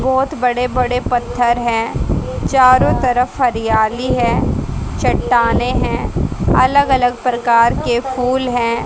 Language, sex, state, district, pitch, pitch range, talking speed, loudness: Hindi, female, Haryana, Jhajjar, 250 Hz, 235-255 Hz, 115 wpm, -15 LUFS